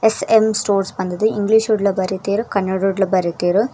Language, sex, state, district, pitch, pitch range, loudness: Tulu, female, Karnataka, Dakshina Kannada, 200 Hz, 190-220 Hz, -17 LUFS